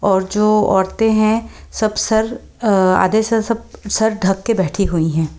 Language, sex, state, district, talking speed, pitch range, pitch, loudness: Hindi, female, Delhi, New Delhi, 165 wpm, 190-220 Hz, 210 Hz, -16 LUFS